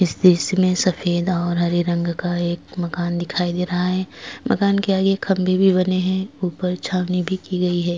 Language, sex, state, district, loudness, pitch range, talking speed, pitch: Hindi, female, Goa, North and South Goa, -20 LUFS, 175-185 Hz, 205 wpm, 180 Hz